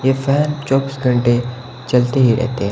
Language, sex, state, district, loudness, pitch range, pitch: Hindi, male, Himachal Pradesh, Shimla, -16 LUFS, 120-135 Hz, 130 Hz